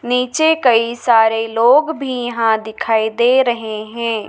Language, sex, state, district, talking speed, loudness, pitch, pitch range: Hindi, female, Madhya Pradesh, Dhar, 140 wpm, -15 LUFS, 235 Hz, 225-250 Hz